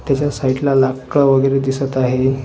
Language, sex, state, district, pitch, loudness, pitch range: Marathi, male, Maharashtra, Washim, 135 Hz, -16 LUFS, 130-135 Hz